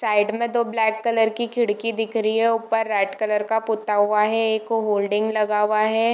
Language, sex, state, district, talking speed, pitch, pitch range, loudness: Hindi, female, Bihar, Darbhanga, 215 wpm, 220 Hz, 210-225 Hz, -21 LUFS